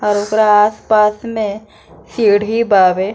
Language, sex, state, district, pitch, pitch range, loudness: Bhojpuri, female, Bihar, East Champaran, 210 Hz, 205-215 Hz, -13 LUFS